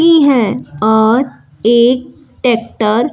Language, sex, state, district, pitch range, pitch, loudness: Hindi, female, Bihar, West Champaran, 215-260 Hz, 235 Hz, -12 LUFS